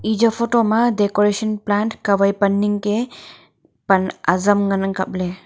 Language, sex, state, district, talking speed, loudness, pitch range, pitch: Wancho, female, Arunachal Pradesh, Longding, 145 wpm, -18 LUFS, 195-220 Hz, 205 Hz